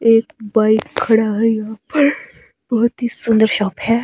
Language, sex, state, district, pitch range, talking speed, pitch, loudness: Hindi, female, Himachal Pradesh, Shimla, 220-235 Hz, 165 wpm, 225 Hz, -16 LUFS